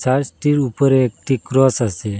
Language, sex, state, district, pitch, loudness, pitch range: Bengali, male, Assam, Hailakandi, 130 Hz, -17 LUFS, 120-135 Hz